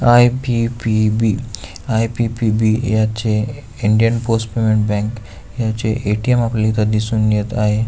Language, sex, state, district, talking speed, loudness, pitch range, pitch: Marathi, male, Maharashtra, Aurangabad, 105 wpm, -17 LUFS, 110-115 Hz, 110 Hz